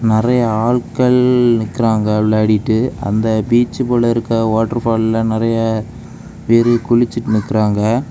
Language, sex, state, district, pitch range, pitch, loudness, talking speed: Tamil, male, Tamil Nadu, Kanyakumari, 110-120 Hz, 115 Hz, -15 LUFS, 95 wpm